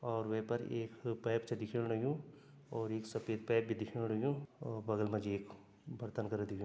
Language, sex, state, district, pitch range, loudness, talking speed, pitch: Garhwali, male, Uttarakhand, Tehri Garhwal, 110-120 Hz, -40 LUFS, 210 wpm, 115 Hz